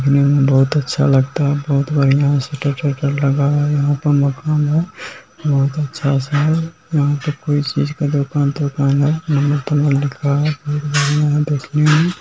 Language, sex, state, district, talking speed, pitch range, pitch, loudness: Maithili, male, Bihar, Muzaffarpur, 190 wpm, 140-150 Hz, 145 Hz, -16 LUFS